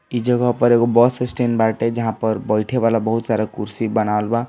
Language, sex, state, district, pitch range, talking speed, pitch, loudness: Hindi, male, Bihar, East Champaran, 110-120 Hz, 215 wpm, 115 Hz, -18 LUFS